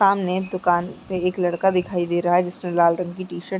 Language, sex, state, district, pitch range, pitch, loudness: Hindi, female, Uttarakhand, Tehri Garhwal, 175-185 Hz, 180 Hz, -22 LUFS